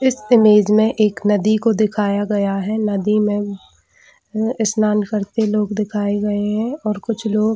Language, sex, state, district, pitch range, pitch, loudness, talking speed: Hindi, female, Jharkhand, Jamtara, 205-220 Hz, 210 Hz, -18 LUFS, 175 wpm